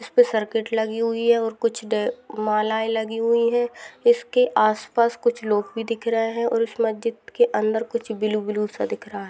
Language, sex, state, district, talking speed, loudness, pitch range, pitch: Hindi, female, Rajasthan, Nagaur, 200 wpm, -22 LUFS, 220-235 Hz, 225 Hz